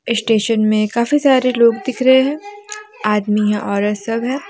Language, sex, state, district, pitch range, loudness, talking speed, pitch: Hindi, female, Jharkhand, Deoghar, 215-270 Hz, -15 LUFS, 160 wpm, 235 Hz